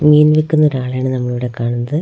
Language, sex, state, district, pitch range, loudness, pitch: Malayalam, female, Kerala, Wayanad, 125-150 Hz, -15 LUFS, 130 Hz